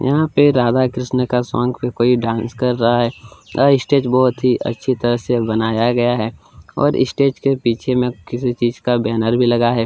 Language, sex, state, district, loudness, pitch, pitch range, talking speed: Hindi, male, Chhattisgarh, Kabirdham, -17 LUFS, 120 Hz, 115-125 Hz, 205 wpm